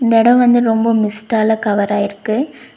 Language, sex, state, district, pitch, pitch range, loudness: Tamil, female, Tamil Nadu, Nilgiris, 220 Hz, 210-235 Hz, -14 LUFS